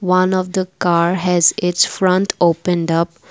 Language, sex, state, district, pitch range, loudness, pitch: English, female, Assam, Kamrup Metropolitan, 170-185 Hz, -16 LUFS, 180 Hz